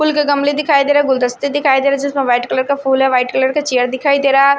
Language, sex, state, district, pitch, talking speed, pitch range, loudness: Hindi, female, Punjab, Kapurthala, 275 Hz, 340 wpm, 265-285 Hz, -14 LUFS